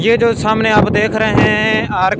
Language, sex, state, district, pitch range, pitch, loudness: Hindi, male, Punjab, Fazilka, 210-220 Hz, 220 Hz, -13 LUFS